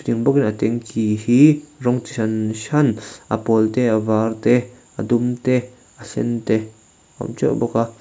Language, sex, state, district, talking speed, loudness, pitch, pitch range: Mizo, male, Mizoram, Aizawl, 170 wpm, -19 LUFS, 115 Hz, 110-125 Hz